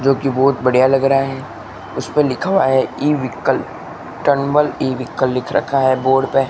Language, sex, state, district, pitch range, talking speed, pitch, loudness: Hindi, male, Rajasthan, Bikaner, 130-140 Hz, 175 wpm, 135 Hz, -16 LUFS